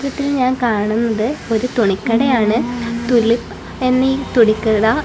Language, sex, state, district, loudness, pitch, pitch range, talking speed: Malayalam, female, Kerala, Kasaragod, -16 LUFS, 235 Hz, 225-255 Hz, 95 wpm